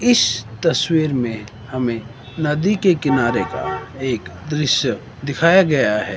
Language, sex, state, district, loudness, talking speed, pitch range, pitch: Hindi, male, Himachal Pradesh, Shimla, -19 LUFS, 125 wpm, 115-155 Hz, 130 Hz